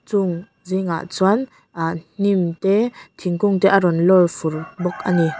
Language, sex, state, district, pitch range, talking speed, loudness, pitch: Mizo, female, Mizoram, Aizawl, 170-195 Hz, 180 wpm, -19 LUFS, 180 Hz